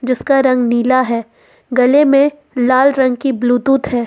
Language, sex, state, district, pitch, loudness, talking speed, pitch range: Hindi, female, Jharkhand, Ranchi, 255 Hz, -13 LUFS, 160 wpm, 245-275 Hz